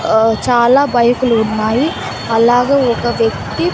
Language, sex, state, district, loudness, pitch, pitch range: Telugu, female, Andhra Pradesh, Sri Satya Sai, -13 LUFS, 240 Hz, 225-255 Hz